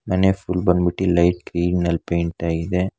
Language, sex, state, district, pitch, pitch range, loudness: Kannada, male, Karnataka, Bangalore, 90 Hz, 85-90 Hz, -20 LUFS